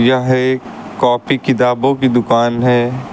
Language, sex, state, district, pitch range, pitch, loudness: Hindi, male, Uttar Pradesh, Lucknow, 120-130 Hz, 125 Hz, -14 LUFS